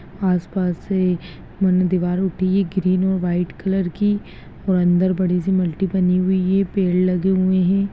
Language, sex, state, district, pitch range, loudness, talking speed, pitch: Hindi, male, Chhattisgarh, Balrampur, 180-190 Hz, -19 LUFS, 160 wpm, 185 Hz